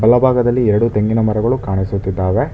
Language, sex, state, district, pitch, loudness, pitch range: Kannada, male, Karnataka, Bangalore, 110 Hz, -15 LUFS, 100-120 Hz